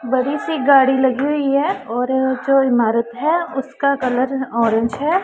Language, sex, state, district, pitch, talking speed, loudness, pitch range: Hindi, female, Punjab, Pathankot, 265 Hz, 150 wpm, -17 LUFS, 250-280 Hz